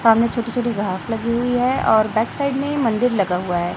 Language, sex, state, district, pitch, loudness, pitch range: Hindi, female, Chhattisgarh, Raipur, 230 Hz, -19 LUFS, 215-245 Hz